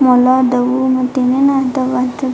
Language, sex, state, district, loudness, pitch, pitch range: Kannada, female, Karnataka, Dharwad, -13 LUFS, 255 Hz, 250-260 Hz